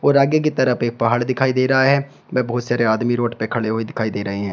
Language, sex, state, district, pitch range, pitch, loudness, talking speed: Hindi, male, Uttar Pradesh, Shamli, 115-130 Hz, 120 Hz, -19 LUFS, 290 wpm